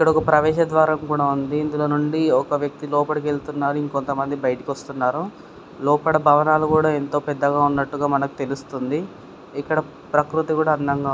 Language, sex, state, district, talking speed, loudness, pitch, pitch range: Telugu, male, Karnataka, Dharwad, 155 wpm, -21 LUFS, 145 Hz, 140-155 Hz